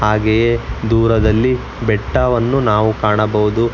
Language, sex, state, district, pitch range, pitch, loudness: Kannada, male, Karnataka, Bangalore, 110-120 Hz, 115 Hz, -15 LUFS